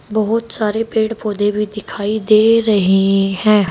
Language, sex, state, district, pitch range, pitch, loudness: Hindi, female, Uttar Pradesh, Saharanpur, 205-220 Hz, 210 Hz, -15 LUFS